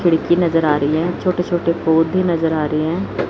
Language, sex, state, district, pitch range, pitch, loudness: Hindi, female, Chandigarh, Chandigarh, 160-175 Hz, 165 Hz, -17 LUFS